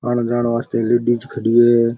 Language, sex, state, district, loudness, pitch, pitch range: Rajasthani, male, Rajasthan, Churu, -17 LUFS, 120 Hz, 115-120 Hz